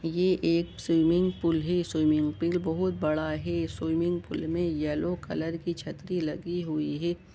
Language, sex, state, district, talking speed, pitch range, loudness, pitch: Hindi, male, Jharkhand, Jamtara, 165 wpm, 155-175 Hz, -29 LUFS, 165 Hz